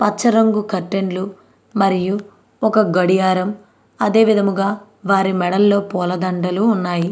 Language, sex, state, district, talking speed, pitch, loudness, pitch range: Telugu, female, Andhra Pradesh, Anantapur, 100 wpm, 195 Hz, -17 LUFS, 185-205 Hz